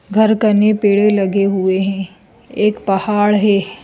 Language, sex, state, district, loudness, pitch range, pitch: Hindi, female, Madhya Pradesh, Bhopal, -14 LUFS, 195-210 Hz, 205 Hz